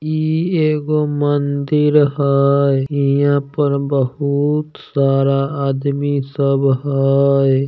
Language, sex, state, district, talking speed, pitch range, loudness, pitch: Maithili, male, Bihar, Samastipur, 85 wpm, 140-145 Hz, -16 LUFS, 140 Hz